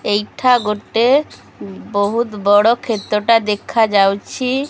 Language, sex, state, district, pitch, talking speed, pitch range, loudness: Odia, female, Odisha, Khordha, 210 Hz, 90 wpm, 205-235 Hz, -16 LUFS